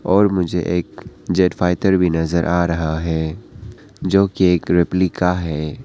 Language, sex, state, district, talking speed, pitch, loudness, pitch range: Hindi, male, Arunachal Pradesh, Papum Pare, 165 wpm, 90 Hz, -18 LUFS, 85-95 Hz